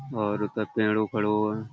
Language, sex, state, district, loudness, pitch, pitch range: Hindi, male, Uttar Pradesh, Budaun, -27 LUFS, 105 Hz, 105-110 Hz